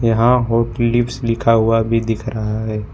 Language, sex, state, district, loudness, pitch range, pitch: Hindi, male, Jharkhand, Ranchi, -17 LUFS, 110-120 Hz, 115 Hz